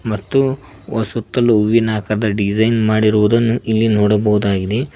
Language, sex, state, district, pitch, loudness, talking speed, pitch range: Kannada, male, Karnataka, Koppal, 110 Hz, -16 LUFS, 95 wpm, 105-115 Hz